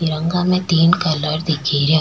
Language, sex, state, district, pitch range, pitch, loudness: Rajasthani, female, Rajasthan, Churu, 155-175 Hz, 160 Hz, -17 LUFS